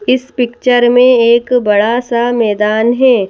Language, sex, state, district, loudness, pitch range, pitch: Hindi, female, Madhya Pradesh, Bhopal, -11 LUFS, 230-250 Hz, 240 Hz